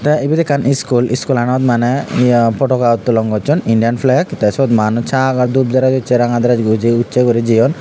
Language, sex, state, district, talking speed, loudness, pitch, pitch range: Chakma, male, Tripura, Unakoti, 185 wpm, -13 LUFS, 125 Hz, 115-130 Hz